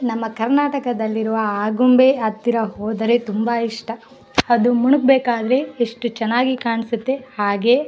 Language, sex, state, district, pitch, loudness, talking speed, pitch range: Kannada, female, Karnataka, Bellary, 235 Hz, -18 LUFS, 115 wpm, 225-255 Hz